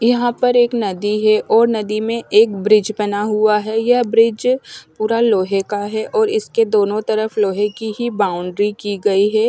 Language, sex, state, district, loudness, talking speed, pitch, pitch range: Hindi, male, Punjab, Fazilka, -16 LUFS, 190 wpm, 215 Hz, 205-235 Hz